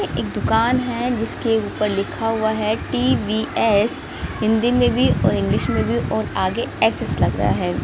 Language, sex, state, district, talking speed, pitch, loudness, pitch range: Hindi, male, Haryana, Charkhi Dadri, 160 wpm, 220 Hz, -20 LUFS, 210-235 Hz